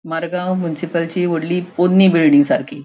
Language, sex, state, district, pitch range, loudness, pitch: Konkani, female, Goa, North and South Goa, 165-185 Hz, -16 LUFS, 175 Hz